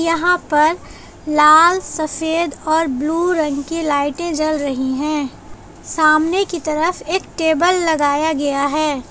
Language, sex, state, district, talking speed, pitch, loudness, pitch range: Hindi, female, Jharkhand, Palamu, 130 wpm, 315 Hz, -16 LUFS, 295-335 Hz